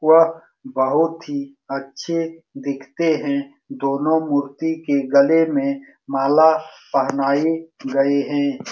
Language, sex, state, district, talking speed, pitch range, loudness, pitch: Hindi, male, Bihar, Saran, 105 wpm, 140-165 Hz, -20 LUFS, 160 Hz